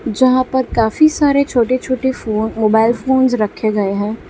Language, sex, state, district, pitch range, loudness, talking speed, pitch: Hindi, female, Gujarat, Valsad, 220-260 Hz, -15 LUFS, 165 wpm, 245 Hz